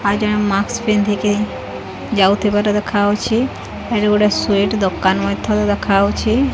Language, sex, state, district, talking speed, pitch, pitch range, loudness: Odia, female, Odisha, Khordha, 110 wpm, 205 Hz, 200-210 Hz, -16 LUFS